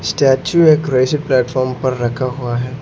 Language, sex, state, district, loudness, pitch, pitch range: Hindi, male, Arunachal Pradesh, Lower Dibang Valley, -15 LUFS, 130 Hz, 125-140 Hz